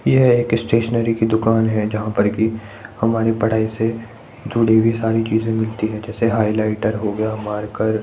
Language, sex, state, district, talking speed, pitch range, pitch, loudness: Hindi, male, Uttar Pradesh, Jyotiba Phule Nagar, 170 wpm, 110-115 Hz, 110 Hz, -18 LUFS